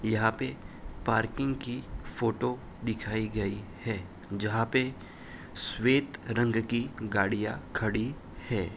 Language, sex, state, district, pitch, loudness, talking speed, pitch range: Hindi, male, Uttar Pradesh, Hamirpur, 110 Hz, -31 LUFS, 110 wpm, 100-120 Hz